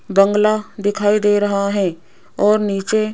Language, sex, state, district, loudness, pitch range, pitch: Hindi, female, Rajasthan, Jaipur, -17 LUFS, 200-210 Hz, 205 Hz